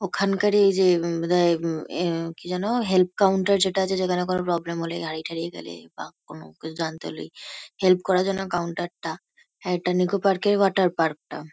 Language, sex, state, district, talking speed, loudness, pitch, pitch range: Bengali, female, West Bengal, Kolkata, 190 wpm, -23 LUFS, 180 Hz, 170-195 Hz